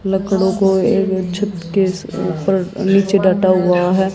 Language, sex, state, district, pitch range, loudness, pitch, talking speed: Hindi, female, Haryana, Jhajjar, 185-195 Hz, -16 LUFS, 190 Hz, 145 wpm